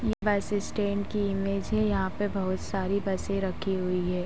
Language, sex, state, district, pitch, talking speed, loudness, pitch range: Hindi, female, Uttar Pradesh, Gorakhpur, 195 Hz, 185 wpm, -29 LUFS, 190-205 Hz